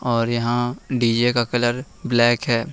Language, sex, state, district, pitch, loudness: Hindi, male, Jharkhand, Ranchi, 120 Hz, -20 LUFS